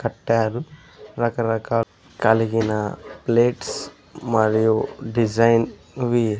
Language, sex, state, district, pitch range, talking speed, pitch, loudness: Telugu, male, Andhra Pradesh, Sri Satya Sai, 110-120 Hz, 75 wpm, 115 Hz, -21 LUFS